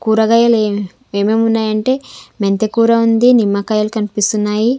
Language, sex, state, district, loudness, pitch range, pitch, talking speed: Telugu, female, Andhra Pradesh, Sri Satya Sai, -14 LUFS, 210-230 Hz, 220 Hz, 115 wpm